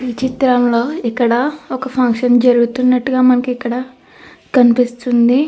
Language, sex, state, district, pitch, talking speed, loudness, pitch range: Telugu, female, Andhra Pradesh, Krishna, 250 Hz, 120 wpm, -14 LUFS, 240-255 Hz